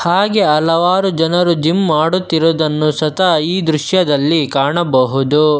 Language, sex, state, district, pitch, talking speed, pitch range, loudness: Kannada, male, Karnataka, Bangalore, 160 Hz, 95 wpm, 150-175 Hz, -14 LUFS